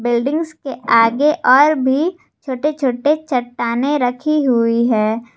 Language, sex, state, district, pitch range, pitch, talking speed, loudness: Hindi, female, Jharkhand, Garhwa, 240-300 Hz, 260 Hz, 125 wpm, -16 LUFS